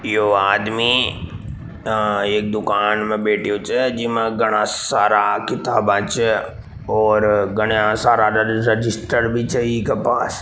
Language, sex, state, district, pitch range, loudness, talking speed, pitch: Marwari, male, Rajasthan, Nagaur, 105-115 Hz, -18 LUFS, 115 wpm, 110 Hz